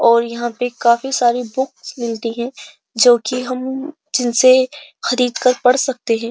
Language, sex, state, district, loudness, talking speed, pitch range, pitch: Hindi, female, Uttar Pradesh, Jyotiba Phule Nagar, -17 LUFS, 145 wpm, 235-260 Hz, 250 Hz